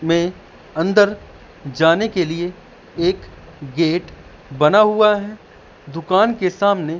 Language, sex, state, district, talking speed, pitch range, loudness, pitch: Hindi, male, Madhya Pradesh, Katni, 110 wpm, 165-205 Hz, -17 LUFS, 175 Hz